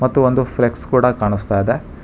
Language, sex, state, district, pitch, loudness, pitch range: Kannada, male, Karnataka, Bangalore, 120 Hz, -17 LUFS, 105-130 Hz